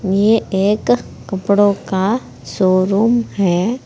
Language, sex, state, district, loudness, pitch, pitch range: Hindi, female, Uttar Pradesh, Saharanpur, -16 LUFS, 195 Hz, 185-215 Hz